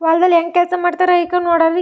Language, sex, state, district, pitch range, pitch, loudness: Kannada, female, Karnataka, Chamarajanagar, 340-355 Hz, 350 Hz, -14 LUFS